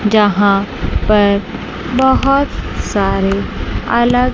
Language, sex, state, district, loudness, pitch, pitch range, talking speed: Hindi, female, Chandigarh, Chandigarh, -14 LUFS, 210 Hz, 200-250 Hz, 70 wpm